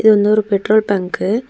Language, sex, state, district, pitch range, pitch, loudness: Tamil, female, Tamil Nadu, Kanyakumari, 200-215 Hz, 210 Hz, -15 LUFS